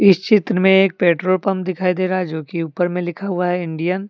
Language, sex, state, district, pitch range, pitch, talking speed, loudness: Hindi, male, Jharkhand, Deoghar, 175-190 Hz, 185 Hz, 275 wpm, -18 LUFS